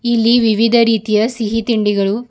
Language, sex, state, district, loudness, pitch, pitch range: Kannada, female, Karnataka, Bidar, -14 LUFS, 225 Hz, 215-235 Hz